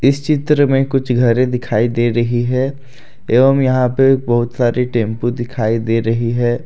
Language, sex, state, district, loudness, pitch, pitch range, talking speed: Hindi, male, Jharkhand, Deoghar, -15 LUFS, 125 Hz, 120-135 Hz, 170 wpm